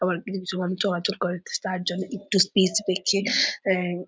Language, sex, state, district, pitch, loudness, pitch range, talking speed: Bengali, female, West Bengal, Purulia, 185 Hz, -24 LUFS, 180-195 Hz, 105 wpm